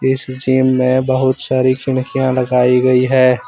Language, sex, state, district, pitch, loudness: Hindi, male, Jharkhand, Ranchi, 130 Hz, -14 LUFS